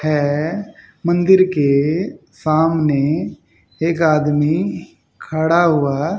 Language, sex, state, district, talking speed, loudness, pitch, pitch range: Hindi, male, Haryana, Jhajjar, 80 wpm, -17 LUFS, 155 Hz, 150-170 Hz